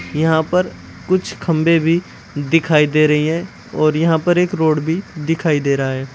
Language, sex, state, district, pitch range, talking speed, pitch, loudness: Hindi, male, Uttar Pradesh, Shamli, 150-170 Hz, 185 wpm, 160 Hz, -17 LUFS